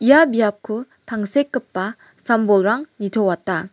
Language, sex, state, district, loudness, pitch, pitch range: Garo, female, Meghalaya, West Garo Hills, -19 LUFS, 220 Hz, 200-260 Hz